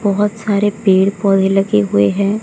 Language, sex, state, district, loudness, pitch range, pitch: Hindi, female, Odisha, Sambalpur, -14 LUFS, 195-205 Hz, 200 Hz